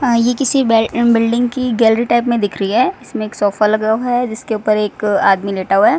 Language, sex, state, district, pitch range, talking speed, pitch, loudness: Hindi, female, Haryana, Rohtak, 210-240 Hz, 250 wpm, 225 Hz, -15 LUFS